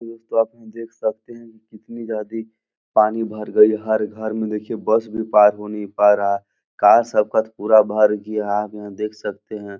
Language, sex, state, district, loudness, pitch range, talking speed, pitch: Hindi, male, Bihar, Jahanabad, -19 LUFS, 105-110 Hz, 240 wpm, 110 Hz